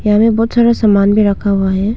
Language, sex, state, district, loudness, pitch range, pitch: Hindi, female, Arunachal Pradesh, Longding, -12 LUFS, 200-225 Hz, 210 Hz